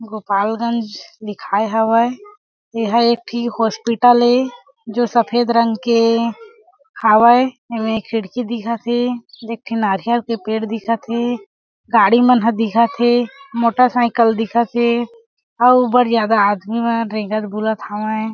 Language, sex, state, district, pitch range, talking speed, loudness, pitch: Chhattisgarhi, female, Chhattisgarh, Jashpur, 220-240 Hz, 135 wpm, -16 LUFS, 230 Hz